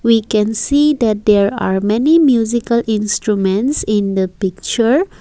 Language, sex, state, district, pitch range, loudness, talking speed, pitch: English, female, Assam, Kamrup Metropolitan, 205-235 Hz, -15 LUFS, 140 wpm, 220 Hz